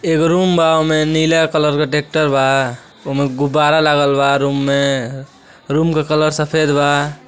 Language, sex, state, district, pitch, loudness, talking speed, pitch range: Bhojpuri, male, Uttar Pradesh, Deoria, 150 Hz, -15 LUFS, 165 wpm, 140-155 Hz